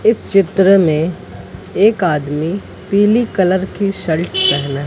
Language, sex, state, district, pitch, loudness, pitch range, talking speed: Hindi, male, Madhya Pradesh, Katni, 185 Hz, -14 LUFS, 150-195 Hz, 125 wpm